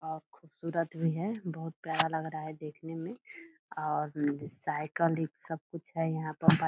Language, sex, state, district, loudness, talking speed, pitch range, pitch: Hindi, female, Bihar, Purnia, -34 LUFS, 190 wpm, 155-165 Hz, 160 Hz